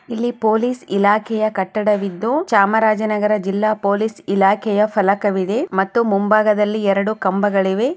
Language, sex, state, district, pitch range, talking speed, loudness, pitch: Kannada, female, Karnataka, Chamarajanagar, 200-220 Hz, 105 wpm, -17 LUFS, 210 Hz